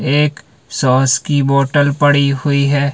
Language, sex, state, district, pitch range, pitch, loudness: Hindi, male, Himachal Pradesh, Shimla, 140-145 Hz, 140 Hz, -14 LUFS